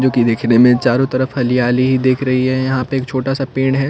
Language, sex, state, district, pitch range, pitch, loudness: Hindi, male, Chandigarh, Chandigarh, 125-130 Hz, 130 Hz, -15 LUFS